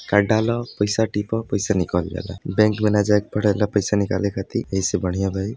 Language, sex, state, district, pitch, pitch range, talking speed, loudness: Bhojpuri, male, Uttar Pradesh, Deoria, 105 Hz, 95-105 Hz, 215 wpm, -21 LUFS